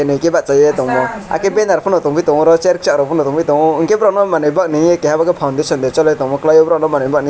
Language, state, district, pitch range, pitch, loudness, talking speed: Kokborok, Tripura, West Tripura, 145-165 Hz, 155 Hz, -13 LUFS, 230 wpm